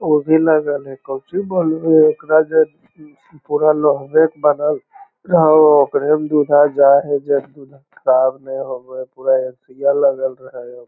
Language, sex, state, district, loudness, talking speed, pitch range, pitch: Magahi, male, Bihar, Lakhisarai, -15 LUFS, 105 wpm, 135-155 Hz, 145 Hz